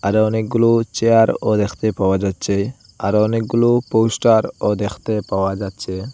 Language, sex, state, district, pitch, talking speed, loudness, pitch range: Bengali, male, Assam, Hailakandi, 110 Hz, 105 wpm, -18 LUFS, 100-115 Hz